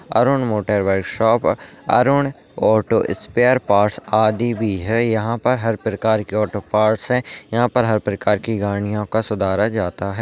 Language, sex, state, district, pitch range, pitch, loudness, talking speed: Hindi, male, Uttarakhand, Tehri Garhwal, 105-115 Hz, 110 Hz, -19 LUFS, 170 wpm